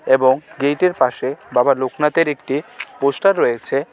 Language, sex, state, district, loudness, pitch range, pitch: Bengali, male, Tripura, West Tripura, -18 LUFS, 130-150 Hz, 140 Hz